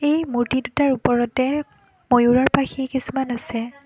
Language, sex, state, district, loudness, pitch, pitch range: Assamese, female, Assam, Kamrup Metropolitan, -20 LUFS, 260 Hz, 245-275 Hz